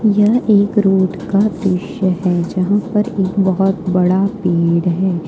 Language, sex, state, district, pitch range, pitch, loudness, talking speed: Hindi, female, Jharkhand, Ranchi, 180-205 Hz, 190 Hz, -15 LUFS, 145 wpm